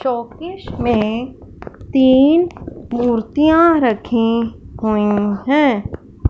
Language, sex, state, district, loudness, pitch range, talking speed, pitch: Hindi, male, Punjab, Fazilka, -16 LUFS, 225-290 Hz, 65 wpm, 240 Hz